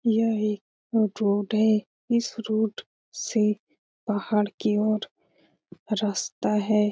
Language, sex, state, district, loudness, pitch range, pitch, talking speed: Hindi, female, Bihar, Lakhisarai, -26 LUFS, 210-220 Hz, 215 Hz, 105 wpm